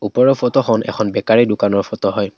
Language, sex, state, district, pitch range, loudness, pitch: Assamese, male, Assam, Kamrup Metropolitan, 100-125 Hz, -16 LUFS, 110 Hz